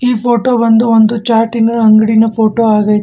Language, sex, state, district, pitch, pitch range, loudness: Kannada, male, Karnataka, Bangalore, 225 Hz, 220-235 Hz, -10 LUFS